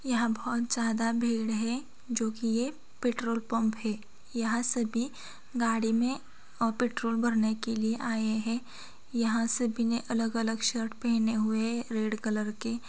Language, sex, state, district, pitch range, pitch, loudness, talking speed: Hindi, female, Bihar, Gopalganj, 225-235 Hz, 230 Hz, -30 LUFS, 160 wpm